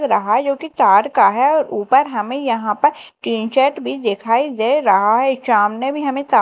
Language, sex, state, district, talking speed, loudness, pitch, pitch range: Hindi, female, Madhya Pradesh, Dhar, 215 wpm, -16 LUFS, 255 Hz, 210-280 Hz